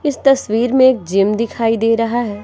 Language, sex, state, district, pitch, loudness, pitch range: Hindi, female, Bihar, Patna, 230 Hz, -15 LUFS, 220-260 Hz